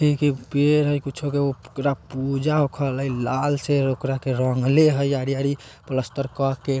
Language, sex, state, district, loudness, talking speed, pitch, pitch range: Bajjika, male, Bihar, Vaishali, -23 LUFS, 160 wpm, 135 Hz, 130-145 Hz